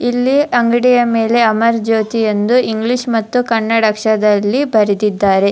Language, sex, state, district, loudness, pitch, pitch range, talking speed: Kannada, female, Karnataka, Dharwad, -13 LUFS, 225 Hz, 215-245 Hz, 120 wpm